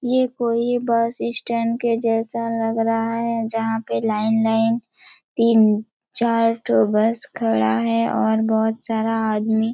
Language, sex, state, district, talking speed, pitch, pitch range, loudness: Hindi, female, Chhattisgarh, Raigarh, 155 wpm, 225 Hz, 220-230 Hz, -20 LUFS